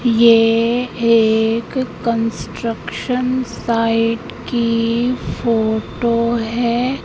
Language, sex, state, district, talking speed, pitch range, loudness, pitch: Hindi, female, Madhya Pradesh, Katni, 60 wpm, 230-240 Hz, -17 LUFS, 230 Hz